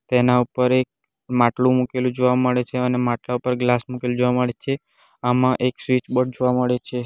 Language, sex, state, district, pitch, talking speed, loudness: Gujarati, male, Gujarat, Valsad, 125 Hz, 185 wpm, -21 LUFS